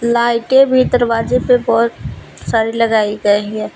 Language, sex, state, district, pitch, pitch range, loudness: Hindi, female, Jharkhand, Deoghar, 230 Hz, 220-250 Hz, -14 LUFS